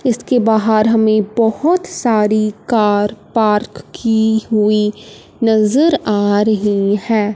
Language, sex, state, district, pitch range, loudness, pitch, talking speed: Hindi, male, Punjab, Fazilka, 210-225 Hz, -14 LUFS, 220 Hz, 105 wpm